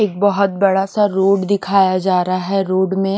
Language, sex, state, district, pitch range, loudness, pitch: Hindi, female, Punjab, Kapurthala, 190-200 Hz, -16 LUFS, 195 Hz